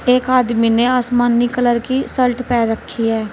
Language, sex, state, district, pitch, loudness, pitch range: Hindi, female, Uttar Pradesh, Saharanpur, 245 Hz, -16 LUFS, 230-250 Hz